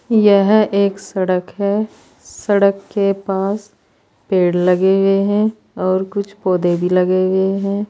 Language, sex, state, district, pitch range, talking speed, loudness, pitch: Hindi, female, Uttar Pradesh, Saharanpur, 185-205 Hz, 135 wpm, -16 LUFS, 195 Hz